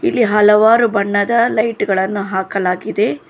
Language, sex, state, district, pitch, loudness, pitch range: Kannada, female, Karnataka, Bangalore, 210 Hz, -14 LUFS, 200-230 Hz